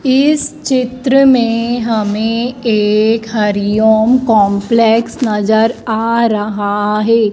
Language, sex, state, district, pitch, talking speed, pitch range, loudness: Hindi, female, Madhya Pradesh, Dhar, 225 Hz, 90 wpm, 215-240 Hz, -13 LUFS